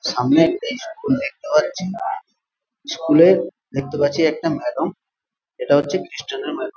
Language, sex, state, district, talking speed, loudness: Bengali, male, West Bengal, Malda, 135 wpm, -19 LUFS